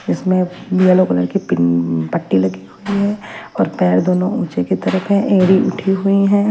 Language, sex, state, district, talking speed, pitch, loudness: Hindi, female, Delhi, New Delhi, 185 wpm, 185 Hz, -16 LUFS